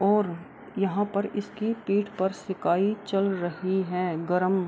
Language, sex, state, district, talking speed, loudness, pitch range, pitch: Hindi, female, Bihar, Kishanganj, 165 wpm, -27 LUFS, 180-205 Hz, 195 Hz